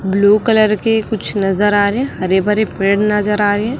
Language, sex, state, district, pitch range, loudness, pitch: Hindi, male, Chhattisgarh, Raipur, 200-215 Hz, -14 LUFS, 210 Hz